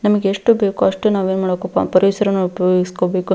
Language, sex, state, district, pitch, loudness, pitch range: Kannada, female, Karnataka, Belgaum, 190 Hz, -17 LUFS, 185-205 Hz